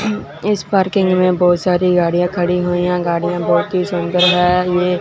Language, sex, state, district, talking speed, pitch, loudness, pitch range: Hindi, male, Punjab, Fazilka, 165 wpm, 180 Hz, -15 LUFS, 175-185 Hz